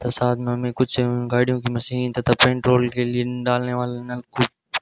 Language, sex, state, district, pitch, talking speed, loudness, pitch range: Hindi, male, Rajasthan, Bikaner, 125 Hz, 200 wpm, -21 LUFS, 120-125 Hz